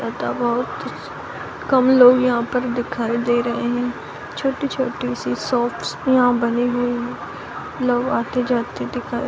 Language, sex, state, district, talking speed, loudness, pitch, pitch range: Hindi, female, Bihar, Saran, 155 wpm, -20 LUFS, 245 Hz, 240-255 Hz